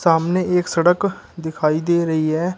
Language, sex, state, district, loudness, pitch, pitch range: Hindi, male, Uttar Pradesh, Shamli, -18 LUFS, 170 Hz, 160-180 Hz